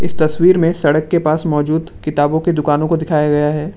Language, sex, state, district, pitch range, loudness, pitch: Hindi, male, Assam, Kamrup Metropolitan, 150-165 Hz, -15 LUFS, 155 Hz